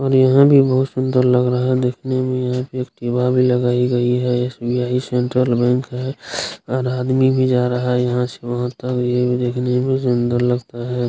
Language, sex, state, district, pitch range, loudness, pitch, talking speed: Hindi, male, Bihar, Jahanabad, 125-130 Hz, -18 LUFS, 125 Hz, 195 wpm